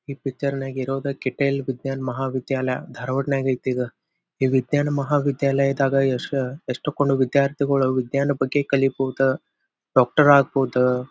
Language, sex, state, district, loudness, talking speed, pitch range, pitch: Kannada, male, Karnataka, Dharwad, -22 LUFS, 120 wpm, 130-140 Hz, 135 Hz